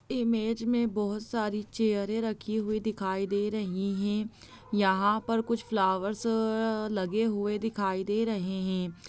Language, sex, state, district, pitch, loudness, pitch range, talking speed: Hindi, female, Chhattisgarh, Bastar, 210 Hz, -30 LUFS, 200-225 Hz, 130 wpm